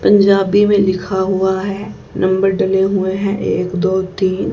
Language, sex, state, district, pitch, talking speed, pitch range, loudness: Hindi, female, Haryana, Charkhi Dadri, 190 Hz, 160 wpm, 190-200 Hz, -15 LUFS